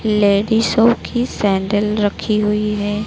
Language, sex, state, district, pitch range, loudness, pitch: Hindi, female, Madhya Pradesh, Dhar, 205-220 Hz, -16 LUFS, 210 Hz